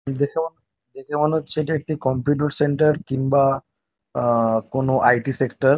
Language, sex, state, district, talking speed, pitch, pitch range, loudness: Bengali, male, West Bengal, North 24 Parganas, 165 wpm, 135 Hz, 130-150 Hz, -21 LUFS